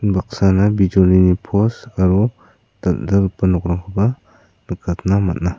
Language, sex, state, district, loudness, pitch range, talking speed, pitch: Garo, male, Meghalaya, South Garo Hills, -17 LUFS, 90-105 Hz, 85 wpm, 95 Hz